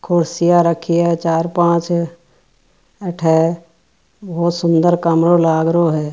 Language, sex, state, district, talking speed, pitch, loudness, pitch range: Marwari, female, Rajasthan, Churu, 115 wpm, 170 Hz, -15 LUFS, 165-175 Hz